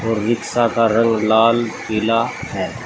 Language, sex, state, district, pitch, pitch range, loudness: Hindi, male, Uttar Pradesh, Saharanpur, 115 Hz, 110-115 Hz, -17 LUFS